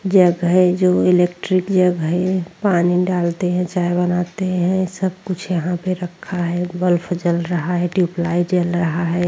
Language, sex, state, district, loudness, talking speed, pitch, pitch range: Hindi, female, Uttar Pradesh, Jyotiba Phule Nagar, -18 LUFS, 170 wpm, 180 Hz, 175-185 Hz